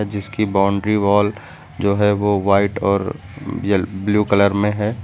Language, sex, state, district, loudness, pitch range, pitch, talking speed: Hindi, male, Uttar Pradesh, Lucknow, -18 LUFS, 100-105 Hz, 100 Hz, 155 wpm